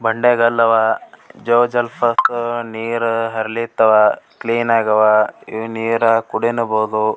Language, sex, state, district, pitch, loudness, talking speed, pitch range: Kannada, male, Karnataka, Gulbarga, 115 Hz, -16 LUFS, 90 wpm, 110-115 Hz